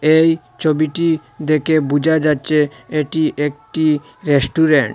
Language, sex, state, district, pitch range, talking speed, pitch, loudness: Bengali, male, Assam, Hailakandi, 145-160 Hz, 110 wpm, 155 Hz, -17 LUFS